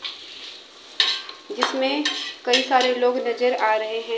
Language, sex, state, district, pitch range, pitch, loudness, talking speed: Hindi, female, Haryana, Jhajjar, 245-360 Hz, 255 Hz, -21 LUFS, 115 wpm